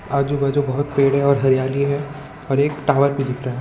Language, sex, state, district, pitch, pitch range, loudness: Hindi, male, Gujarat, Valsad, 140 Hz, 135-145 Hz, -19 LUFS